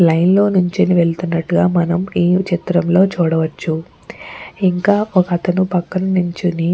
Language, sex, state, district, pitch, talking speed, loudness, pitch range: Telugu, female, Andhra Pradesh, Chittoor, 180 Hz, 135 wpm, -16 LUFS, 170-185 Hz